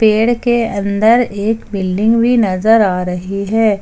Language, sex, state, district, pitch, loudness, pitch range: Hindi, female, Jharkhand, Ranchi, 215 Hz, -14 LUFS, 200-230 Hz